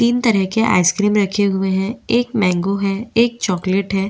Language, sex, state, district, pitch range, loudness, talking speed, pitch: Hindi, female, Chhattisgarh, Bastar, 190-230 Hz, -17 LUFS, 190 wpm, 200 Hz